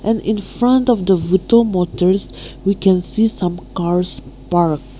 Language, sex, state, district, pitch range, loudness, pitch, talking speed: English, female, Nagaland, Kohima, 175-215 Hz, -17 LUFS, 185 Hz, 145 wpm